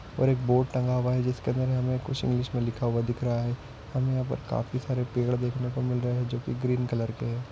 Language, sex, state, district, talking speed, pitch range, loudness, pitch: Hindi, male, Maharashtra, Sindhudurg, 265 wpm, 120-130 Hz, -28 LUFS, 125 Hz